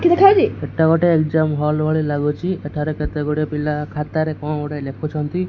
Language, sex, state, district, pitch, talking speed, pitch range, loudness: Odia, male, Odisha, Khordha, 150 Hz, 140 wpm, 150-160 Hz, -19 LUFS